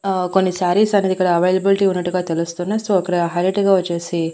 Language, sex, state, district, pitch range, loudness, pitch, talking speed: Telugu, female, Andhra Pradesh, Annamaya, 175-195 Hz, -18 LUFS, 185 Hz, 180 wpm